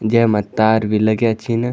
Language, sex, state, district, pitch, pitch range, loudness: Garhwali, male, Uttarakhand, Tehri Garhwal, 110 Hz, 110-115 Hz, -16 LUFS